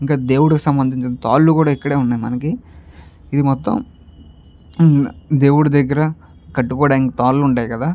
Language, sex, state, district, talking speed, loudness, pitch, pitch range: Telugu, male, Andhra Pradesh, Chittoor, 120 wpm, -16 LUFS, 135 Hz, 120-145 Hz